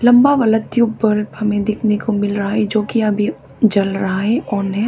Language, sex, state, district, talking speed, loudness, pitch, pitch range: Hindi, female, Arunachal Pradesh, Papum Pare, 220 wpm, -16 LUFS, 215 Hz, 205-225 Hz